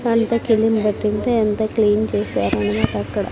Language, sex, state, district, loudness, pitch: Telugu, female, Andhra Pradesh, Sri Satya Sai, -19 LUFS, 210 Hz